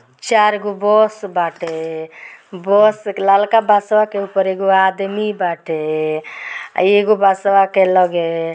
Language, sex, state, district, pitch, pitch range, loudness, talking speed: Bhojpuri, female, Bihar, Gopalganj, 195 Hz, 170-205 Hz, -15 LUFS, 120 wpm